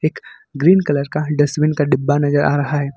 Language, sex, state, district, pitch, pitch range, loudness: Hindi, male, Jharkhand, Ranchi, 145 Hz, 145-150 Hz, -16 LUFS